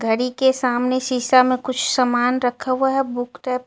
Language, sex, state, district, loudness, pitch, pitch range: Hindi, female, Jharkhand, Ranchi, -19 LUFS, 255 Hz, 245-260 Hz